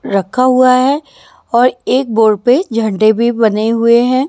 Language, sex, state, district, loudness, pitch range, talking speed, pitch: Hindi, female, Maharashtra, Gondia, -12 LUFS, 220-255 Hz, 170 wpm, 235 Hz